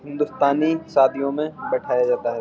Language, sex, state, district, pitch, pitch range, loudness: Hindi, male, Uttar Pradesh, Jyotiba Phule Nagar, 140 Hz, 130-155 Hz, -21 LUFS